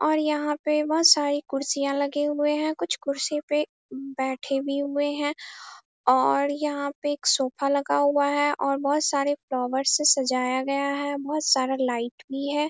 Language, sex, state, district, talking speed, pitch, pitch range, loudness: Hindi, female, Bihar, Darbhanga, 175 wpm, 285 Hz, 275-295 Hz, -24 LUFS